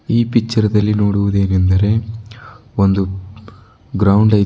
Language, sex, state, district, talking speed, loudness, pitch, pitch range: Kannada, male, Karnataka, Bidar, 95 wpm, -15 LUFS, 105 Hz, 100-110 Hz